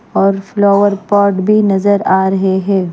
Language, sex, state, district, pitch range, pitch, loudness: Hindi, female, Maharashtra, Mumbai Suburban, 190-205 Hz, 200 Hz, -12 LUFS